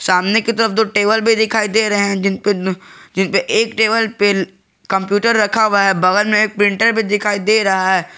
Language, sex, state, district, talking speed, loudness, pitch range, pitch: Hindi, male, Jharkhand, Garhwa, 220 wpm, -15 LUFS, 195-220 Hz, 205 Hz